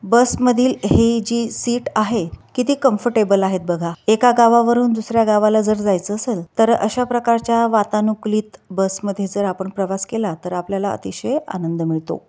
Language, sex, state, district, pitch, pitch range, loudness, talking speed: Marathi, female, Maharashtra, Dhule, 215 Hz, 195-235 Hz, -18 LUFS, 155 wpm